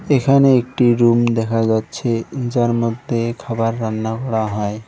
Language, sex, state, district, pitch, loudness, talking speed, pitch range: Bengali, male, West Bengal, Cooch Behar, 115 Hz, -17 LUFS, 135 wpm, 110-120 Hz